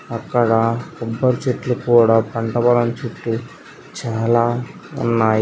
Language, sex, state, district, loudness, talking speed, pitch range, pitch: Telugu, male, Andhra Pradesh, Srikakulam, -18 LUFS, 100 wpm, 115-120 Hz, 115 Hz